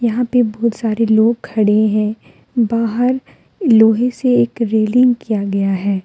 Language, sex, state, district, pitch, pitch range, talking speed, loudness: Hindi, female, Jharkhand, Deoghar, 230 Hz, 215-245 Hz, 150 wpm, -15 LUFS